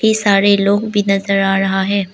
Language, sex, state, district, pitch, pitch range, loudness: Hindi, female, Arunachal Pradesh, Lower Dibang Valley, 200 Hz, 195-205 Hz, -14 LUFS